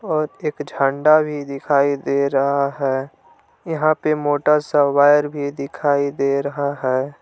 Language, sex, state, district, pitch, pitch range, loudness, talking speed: Hindi, male, Jharkhand, Palamu, 140 Hz, 140-150 Hz, -19 LUFS, 150 wpm